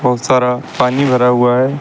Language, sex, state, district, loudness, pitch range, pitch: Hindi, male, Uttar Pradesh, Lucknow, -13 LUFS, 125-130 Hz, 125 Hz